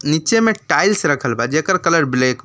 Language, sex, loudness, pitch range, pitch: Bhojpuri, male, -16 LUFS, 130-190 Hz, 155 Hz